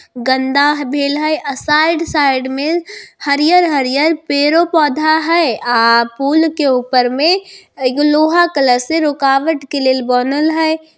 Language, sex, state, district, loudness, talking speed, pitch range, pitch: Hindi, female, Bihar, Darbhanga, -13 LUFS, 130 wpm, 270-320 Hz, 295 Hz